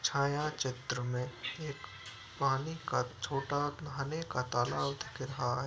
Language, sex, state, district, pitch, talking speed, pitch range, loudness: Hindi, male, Uttar Pradesh, Etah, 135 Hz, 115 wpm, 125-145 Hz, -36 LUFS